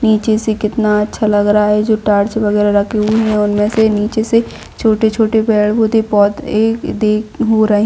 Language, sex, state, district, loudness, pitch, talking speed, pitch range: Hindi, female, Jharkhand, Jamtara, -13 LUFS, 215 Hz, 175 wpm, 210-220 Hz